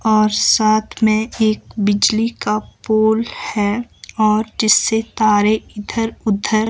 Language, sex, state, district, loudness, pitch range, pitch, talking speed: Hindi, male, Himachal Pradesh, Shimla, -16 LUFS, 210-220 Hz, 215 Hz, 115 wpm